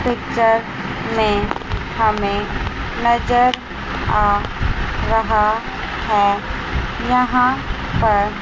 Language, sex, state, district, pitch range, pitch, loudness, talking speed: Hindi, female, Chandigarh, Chandigarh, 210-240 Hz, 225 Hz, -18 LUFS, 65 wpm